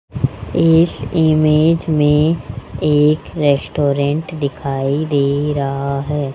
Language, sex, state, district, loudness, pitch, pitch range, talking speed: Hindi, male, Rajasthan, Jaipur, -16 LUFS, 150 Hz, 140-155 Hz, 85 wpm